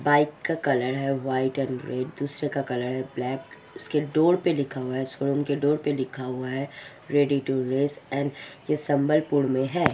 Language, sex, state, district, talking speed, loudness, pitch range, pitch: Hindi, female, Odisha, Sambalpur, 205 wpm, -26 LUFS, 130-145 Hz, 140 Hz